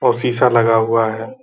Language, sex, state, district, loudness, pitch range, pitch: Hindi, male, Bihar, Purnia, -15 LUFS, 115-125 Hz, 115 Hz